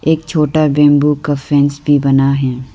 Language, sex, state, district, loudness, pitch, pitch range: Hindi, female, Arunachal Pradesh, Lower Dibang Valley, -13 LUFS, 145 Hz, 140-150 Hz